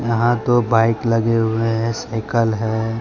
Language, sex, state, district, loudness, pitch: Hindi, male, Jharkhand, Deoghar, -18 LUFS, 115 Hz